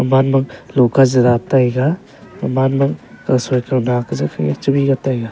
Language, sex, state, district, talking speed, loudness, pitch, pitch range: Wancho, male, Arunachal Pradesh, Longding, 125 wpm, -16 LUFS, 130 Hz, 125-135 Hz